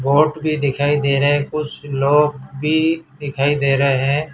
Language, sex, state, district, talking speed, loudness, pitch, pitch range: Hindi, male, Gujarat, Valsad, 180 wpm, -18 LUFS, 145 Hz, 140-150 Hz